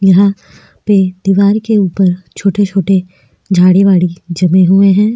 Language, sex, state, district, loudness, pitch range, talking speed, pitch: Hindi, female, Uttarakhand, Tehri Garhwal, -11 LUFS, 185-200 Hz, 115 wpm, 195 Hz